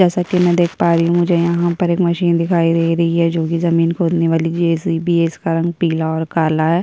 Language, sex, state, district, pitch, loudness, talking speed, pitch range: Hindi, female, Uttar Pradesh, Budaun, 170 Hz, -16 LUFS, 245 wpm, 165-175 Hz